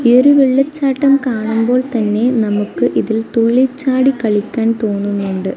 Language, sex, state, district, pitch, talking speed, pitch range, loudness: Malayalam, female, Kerala, Kasaragod, 235 Hz, 85 wpm, 220-265 Hz, -14 LUFS